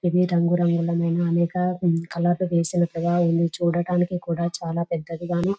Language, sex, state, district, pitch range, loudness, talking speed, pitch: Telugu, female, Telangana, Nalgonda, 170-175 Hz, -23 LUFS, 130 wpm, 170 Hz